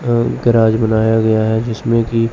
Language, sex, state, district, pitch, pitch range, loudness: Hindi, male, Chandigarh, Chandigarh, 115 Hz, 110-115 Hz, -14 LUFS